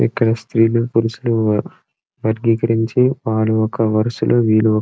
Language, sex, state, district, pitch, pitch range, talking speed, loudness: Telugu, male, Andhra Pradesh, Srikakulam, 115 Hz, 110-115 Hz, 100 wpm, -17 LUFS